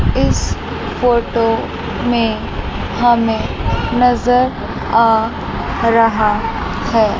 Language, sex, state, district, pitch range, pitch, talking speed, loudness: Hindi, female, Chandigarh, Chandigarh, 225-240 Hz, 230 Hz, 65 wpm, -16 LUFS